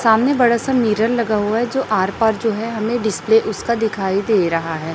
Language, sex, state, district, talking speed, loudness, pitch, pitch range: Hindi, female, Chhattisgarh, Raipur, 230 wpm, -18 LUFS, 220 Hz, 205-235 Hz